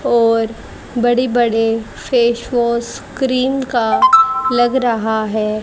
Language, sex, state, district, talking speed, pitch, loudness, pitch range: Hindi, female, Haryana, Charkhi Dadri, 105 wpm, 240 Hz, -15 LUFS, 225-255 Hz